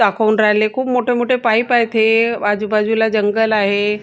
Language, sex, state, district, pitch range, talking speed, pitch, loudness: Marathi, female, Maharashtra, Gondia, 210-235 Hz, 165 wpm, 220 Hz, -15 LUFS